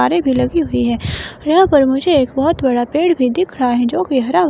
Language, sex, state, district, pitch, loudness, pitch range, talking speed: Hindi, female, Himachal Pradesh, Shimla, 275 Hz, -15 LUFS, 250-335 Hz, 240 wpm